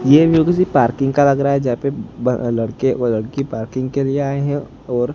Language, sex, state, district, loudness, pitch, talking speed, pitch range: Hindi, male, Gujarat, Gandhinagar, -17 LUFS, 135 Hz, 245 wpm, 120-140 Hz